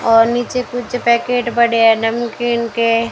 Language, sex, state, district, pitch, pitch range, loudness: Hindi, female, Rajasthan, Bikaner, 235 Hz, 230-240 Hz, -15 LUFS